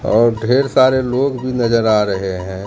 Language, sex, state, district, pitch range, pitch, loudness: Hindi, male, Bihar, Katihar, 105-130 Hz, 120 Hz, -15 LUFS